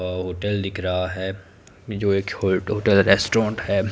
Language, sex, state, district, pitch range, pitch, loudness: Hindi, male, Himachal Pradesh, Shimla, 95-105 Hz, 100 Hz, -22 LUFS